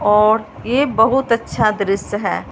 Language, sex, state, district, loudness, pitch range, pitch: Hindi, female, Punjab, Fazilka, -17 LUFS, 205-230 Hz, 215 Hz